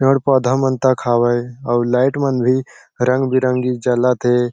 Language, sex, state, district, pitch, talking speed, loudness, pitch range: Chhattisgarhi, male, Chhattisgarh, Sarguja, 125 Hz, 170 wpm, -17 LUFS, 125-130 Hz